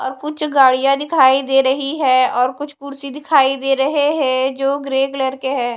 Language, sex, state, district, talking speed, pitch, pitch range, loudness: Hindi, female, Odisha, Khordha, 195 wpm, 270 Hz, 265-280 Hz, -16 LUFS